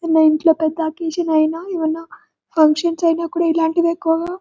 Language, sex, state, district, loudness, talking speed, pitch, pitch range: Telugu, male, Telangana, Karimnagar, -17 LUFS, 150 wpm, 325 Hz, 320-335 Hz